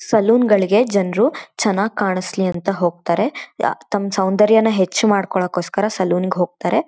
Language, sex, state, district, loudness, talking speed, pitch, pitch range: Kannada, female, Karnataka, Shimoga, -18 LUFS, 120 wpm, 195 Hz, 185-215 Hz